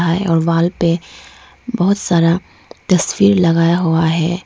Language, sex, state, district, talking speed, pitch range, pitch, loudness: Hindi, female, Arunachal Pradesh, Lower Dibang Valley, 120 wpm, 165-185 Hz, 170 Hz, -15 LUFS